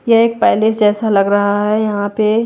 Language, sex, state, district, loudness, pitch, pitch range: Hindi, female, Haryana, Jhajjar, -14 LUFS, 215 Hz, 205-220 Hz